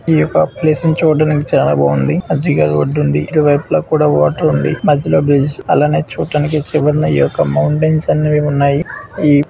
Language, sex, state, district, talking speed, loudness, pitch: Telugu, male, Andhra Pradesh, Visakhapatnam, 150 wpm, -13 LUFS, 145 Hz